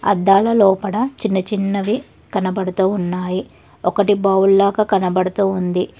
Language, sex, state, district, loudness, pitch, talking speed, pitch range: Telugu, female, Telangana, Hyderabad, -17 LUFS, 195 Hz, 110 wpm, 185-205 Hz